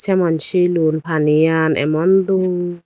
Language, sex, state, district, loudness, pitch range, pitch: Chakma, female, Tripura, Dhalai, -15 LUFS, 155-180 Hz, 170 Hz